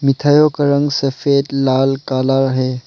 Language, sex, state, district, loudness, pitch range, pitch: Hindi, male, Arunachal Pradesh, Lower Dibang Valley, -15 LUFS, 135-145 Hz, 135 Hz